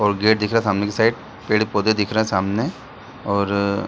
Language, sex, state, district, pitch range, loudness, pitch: Hindi, male, Bihar, Saran, 100-110 Hz, -20 LUFS, 105 Hz